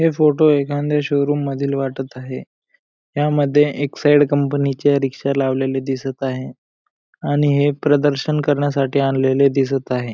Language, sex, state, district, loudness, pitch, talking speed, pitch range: Marathi, male, Maharashtra, Aurangabad, -18 LUFS, 140 Hz, 135 wpm, 135-145 Hz